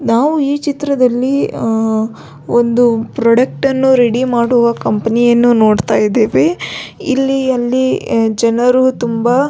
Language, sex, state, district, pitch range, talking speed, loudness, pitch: Kannada, female, Karnataka, Belgaum, 230-265 Hz, 105 wpm, -13 LUFS, 240 Hz